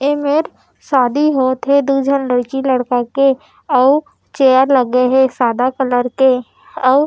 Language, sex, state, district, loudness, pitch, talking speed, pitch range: Chhattisgarhi, female, Chhattisgarh, Raigarh, -14 LUFS, 265 Hz, 145 wpm, 255-280 Hz